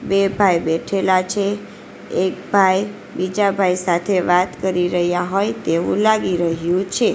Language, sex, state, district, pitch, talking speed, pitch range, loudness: Gujarati, female, Gujarat, Valsad, 185 Hz, 145 wpm, 180-195 Hz, -18 LUFS